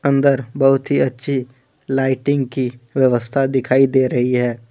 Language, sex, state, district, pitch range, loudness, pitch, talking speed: Hindi, male, Jharkhand, Deoghar, 125-135 Hz, -17 LUFS, 130 Hz, 140 wpm